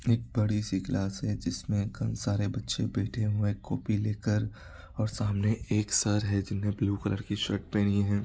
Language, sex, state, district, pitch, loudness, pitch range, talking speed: Hindi, male, Bihar, East Champaran, 105 Hz, -30 LUFS, 100-110 Hz, 190 wpm